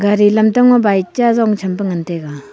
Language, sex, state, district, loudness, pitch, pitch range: Wancho, female, Arunachal Pradesh, Longding, -13 LUFS, 205 Hz, 180-225 Hz